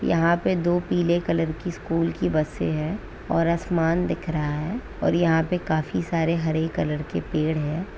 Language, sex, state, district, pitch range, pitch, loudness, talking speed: Hindi, female, West Bengal, Kolkata, 155-175 Hz, 165 Hz, -24 LUFS, 180 wpm